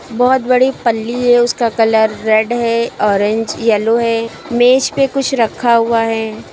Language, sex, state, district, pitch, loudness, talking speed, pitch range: Hindi, female, Uttar Pradesh, Lucknow, 230 Hz, -14 LUFS, 155 wpm, 225-245 Hz